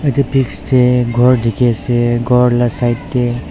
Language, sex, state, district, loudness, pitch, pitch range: Nagamese, male, Nagaland, Dimapur, -14 LUFS, 125 Hz, 120-125 Hz